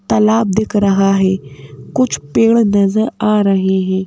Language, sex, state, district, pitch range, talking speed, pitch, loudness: Hindi, female, Madhya Pradesh, Bhopal, 190-215 Hz, 145 wpm, 195 Hz, -14 LUFS